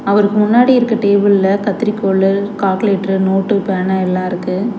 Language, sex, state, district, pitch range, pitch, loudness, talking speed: Tamil, female, Tamil Nadu, Chennai, 190-210 Hz, 200 Hz, -14 LUFS, 125 wpm